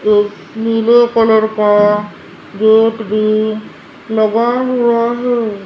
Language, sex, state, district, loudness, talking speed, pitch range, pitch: Hindi, female, Rajasthan, Jaipur, -13 LUFS, 95 wpm, 215-235 Hz, 220 Hz